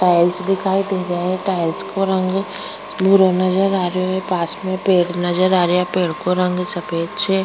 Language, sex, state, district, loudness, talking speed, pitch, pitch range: Rajasthani, female, Rajasthan, Churu, -18 LUFS, 200 wpm, 185 Hz, 180-190 Hz